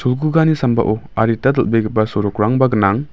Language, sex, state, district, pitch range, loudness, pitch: Garo, male, Meghalaya, West Garo Hills, 110-130 Hz, -16 LUFS, 115 Hz